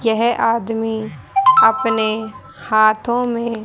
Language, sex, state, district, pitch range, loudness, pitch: Hindi, female, Haryana, Rohtak, 220-235 Hz, -16 LUFS, 225 Hz